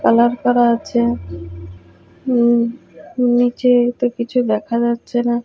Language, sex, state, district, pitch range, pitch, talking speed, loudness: Bengali, female, Odisha, Malkangiri, 230-245 Hz, 235 Hz, 110 wpm, -17 LUFS